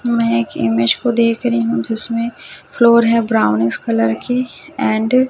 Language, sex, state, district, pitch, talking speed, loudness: Hindi, female, Chhattisgarh, Raipur, 230 Hz, 170 wpm, -16 LUFS